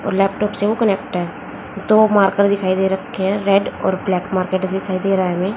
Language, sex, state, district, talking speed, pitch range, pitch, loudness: Hindi, female, Haryana, Jhajjar, 225 wpm, 185-200 Hz, 195 Hz, -18 LUFS